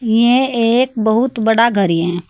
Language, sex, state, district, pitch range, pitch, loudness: Hindi, female, Uttar Pradesh, Saharanpur, 220-240 Hz, 230 Hz, -14 LUFS